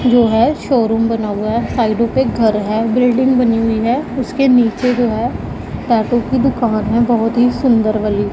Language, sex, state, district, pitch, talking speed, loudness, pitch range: Hindi, female, Punjab, Pathankot, 235 Hz, 185 wpm, -15 LUFS, 225-245 Hz